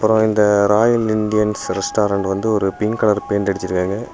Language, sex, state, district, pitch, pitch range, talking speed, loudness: Tamil, male, Tamil Nadu, Kanyakumari, 105 Hz, 100-110 Hz, 160 wpm, -17 LUFS